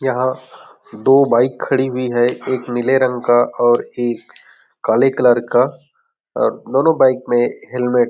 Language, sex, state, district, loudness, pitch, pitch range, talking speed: Hindi, male, Chhattisgarh, Raigarh, -16 LUFS, 130 Hz, 120-135 Hz, 155 wpm